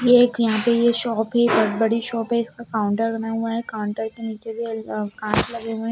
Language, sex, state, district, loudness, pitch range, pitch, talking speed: Hindi, female, Bihar, Jamui, -21 LUFS, 220-235 Hz, 225 Hz, 245 wpm